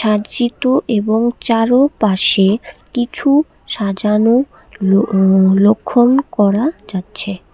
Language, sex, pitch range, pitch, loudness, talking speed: Bengali, female, 200-250 Hz, 215 Hz, -14 LUFS, 65 wpm